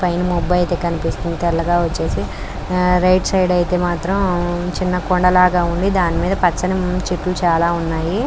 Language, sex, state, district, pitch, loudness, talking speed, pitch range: Telugu, female, Andhra Pradesh, Anantapur, 180 Hz, -17 LUFS, 140 wpm, 175-185 Hz